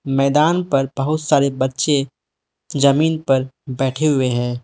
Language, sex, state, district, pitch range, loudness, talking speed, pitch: Hindi, male, Manipur, Imphal West, 130-150 Hz, -18 LUFS, 130 wpm, 135 Hz